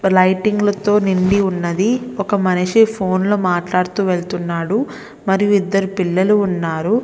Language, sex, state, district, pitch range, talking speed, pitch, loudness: Telugu, female, Andhra Pradesh, Visakhapatnam, 185-205 Hz, 110 wpm, 195 Hz, -17 LUFS